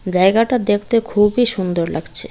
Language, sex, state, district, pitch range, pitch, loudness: Bengali, female, Tripura, Dhalai, 190-230 Hz, 210 Hz, -16 LUFS